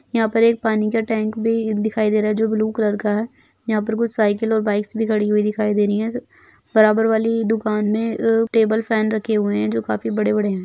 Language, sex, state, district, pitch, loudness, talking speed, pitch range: Bhojpuri, female, Bihar, Saran, 220 Hz, -19 LUFS, 250 wpm, 210-225 Hz